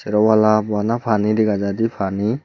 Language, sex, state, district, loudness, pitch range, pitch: Chakma, male, Tripura, Unakoti, -18 LUFS, 105-110 Hz, 110 Hz